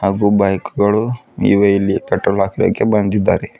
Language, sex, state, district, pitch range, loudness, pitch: Kannada, female, Karnataka, Bidar, 100-105 Hz, -15 LUFS, 100 Hz